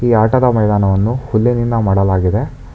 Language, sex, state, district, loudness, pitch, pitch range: Kannada, male, Karnataka, Bangalore, -14 LUFS, 110 Hz, 100-120 Hz